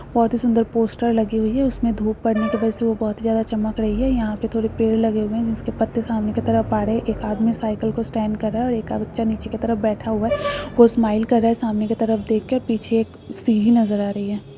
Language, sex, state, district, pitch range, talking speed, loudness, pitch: Marwari, female, Rajasthan, Nagaur, 220-230 Hz, 275 wpm, -21 LUFS, 225 Hz